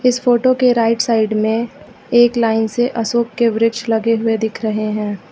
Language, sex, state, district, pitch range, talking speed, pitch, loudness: Hindi, female, Uttar Pradesh, Lucknow, 220-240 Hz, 190 wpm, 230 Hz, -16 LUFS